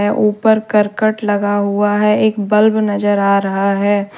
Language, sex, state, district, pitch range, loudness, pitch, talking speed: Hindi, female, Jharkhand, Deoghar, 205-210 Hz, -14 LUFS, 205 Hz, 160 wpm